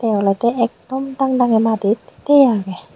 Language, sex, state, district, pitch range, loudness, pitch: Chakma, female, Tripura, Unakoti, 215-265 Hz, -17 LUFS, 235 Hz